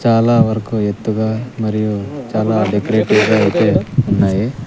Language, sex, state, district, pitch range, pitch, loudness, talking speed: Telugu, male, Andhra Pradesh, Sri Satya Sai, 105-115 Hz, 110 Hz, -15 LUFS, 115 wpm